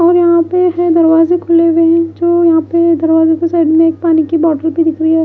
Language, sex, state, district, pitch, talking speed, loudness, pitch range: Hindi, female, Odisha, Malkangiri, 330 Hz, 260 wpm, -11 LUFS, 325-340 Hz